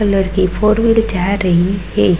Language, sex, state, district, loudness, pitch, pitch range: Hindi, female, Uttarakhand, Tehri Garhwal, -14 LUFS, 195 Hz, 185-210 Hz